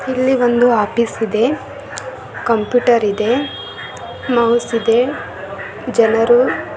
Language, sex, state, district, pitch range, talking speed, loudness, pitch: Kannada, female, Karnataka, Belgaum, 230-245 Hz, 90 wpm, -15 LUFS, 235 Hz